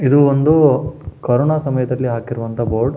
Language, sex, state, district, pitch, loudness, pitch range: Kannada, male, Karnataka, Shimoga, 130 Hz, -16 LUFS, 120-145 Hz